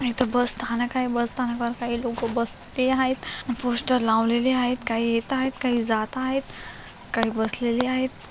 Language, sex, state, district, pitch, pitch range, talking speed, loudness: Marathi, female, Maharashtra, Solapur, 245 Hz, 235-255 Hz, 160 wpm, -24 LUFS